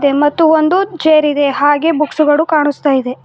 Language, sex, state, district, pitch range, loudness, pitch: Kannada, female, Karnataka, Bidar, 285-315 Hz, -12 LUFS, 300 Hz